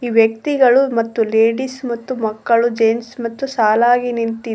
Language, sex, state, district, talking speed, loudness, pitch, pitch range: Kannada, female, Karnataka, Koppal, 130 wpm, -16 LUFS, 235 Hz, 225-245 Hz